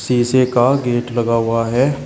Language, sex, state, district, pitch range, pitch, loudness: Hindi, male, Uttar Pradesh, Shamli, 115-130 Hz, 120 Hz, -16 LUFS